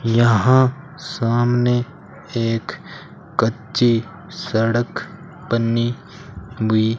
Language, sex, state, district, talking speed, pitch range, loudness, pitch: Hindi, male, Rajasthan, Bikaner, 70 wpm, 115-145 Hz, -19 LUFS, 120 Hz